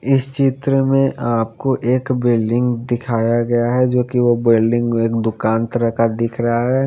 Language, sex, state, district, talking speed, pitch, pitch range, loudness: Hindi, female, Haryana, Charkhi Dadri, 165 wpm, 120 Hz, 115-130 Hz, -17 LUFS